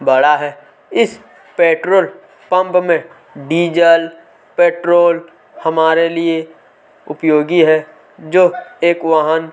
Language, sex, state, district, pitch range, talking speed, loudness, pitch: Hindi, male, Chhattisgarh, Kabirdham, 160-175 Hz, 100 wpm, -14 LUFS, 165 Hz